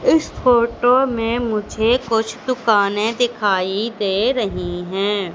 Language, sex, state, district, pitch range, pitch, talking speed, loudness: Hindi, female, Madhya Pradesh, Katni, 200-240 Hz, 225 Hz, 110 wpm, -18 LUFS